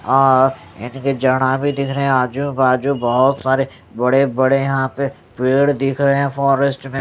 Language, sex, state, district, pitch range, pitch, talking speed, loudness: Hindi, male, Odisha, Nuapada, 130-140 Hz, 135 Hz, 170 wpm, -17 LUFS